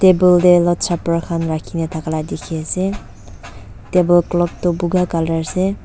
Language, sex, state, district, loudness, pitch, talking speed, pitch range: Nagamese, female, Nagaland, Dimapur, -17 LUFS, 170 Hz, 175 wpm, 160-180 Hz